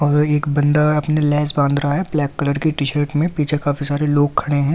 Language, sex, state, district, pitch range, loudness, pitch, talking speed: Hindi, male, Delhi, New Delhi, 145-150 Hz, -18 LUFS, 145 Hz, 265 wpm